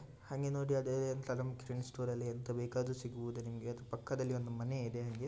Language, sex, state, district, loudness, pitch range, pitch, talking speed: Kannada, male, Karnataka, Shimoga, -40 LUFS, 120-130 Hz, 125 Hz, 125 wpm